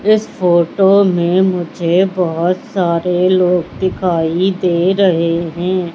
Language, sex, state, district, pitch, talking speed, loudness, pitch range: Hindi, female, Madhya Pradesh, Katni, 180 Hz, 110 wpm, -14 LUFS, 170-190 Hz